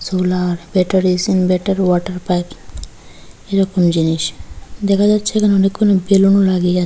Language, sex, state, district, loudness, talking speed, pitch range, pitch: Bengali, female, Tripura, Dhalai, -15 LUFS, 130 wpm, 175-195 Hz, 185 Hz